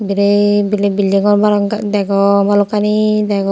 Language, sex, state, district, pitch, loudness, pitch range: Chakma, female, Tripura, Unakoti, 205 Hz, -13 LUFS, 200-210 Hz